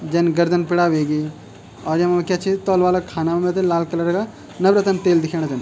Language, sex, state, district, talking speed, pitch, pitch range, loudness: Garhwali, male, Uttarakhand, Tehri Garhwal, 215 wpm, 175 Hz, 160-180 Hz, -19 LUFS